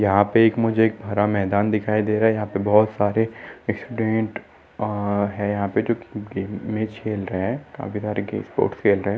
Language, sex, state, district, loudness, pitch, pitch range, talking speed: Hindi, male, Maharashtra, Nagpur, -22 LUFS, 105 Hz, 100-110 Hz, 220 wpm